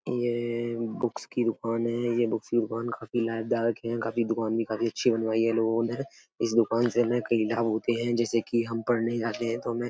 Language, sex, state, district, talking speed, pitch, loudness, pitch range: Hindi, male, Uttar Pradesh, Etah, 230 wpm, 115 Hz, -28 LUFS, 115-120 Hz